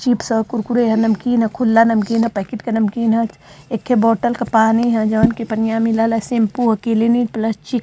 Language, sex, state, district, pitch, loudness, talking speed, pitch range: Bhojpuri, female, Uttar Pradesh, Varanasi, 225 Hz, -17 LUFS, 215 wpm, 220-235 Hz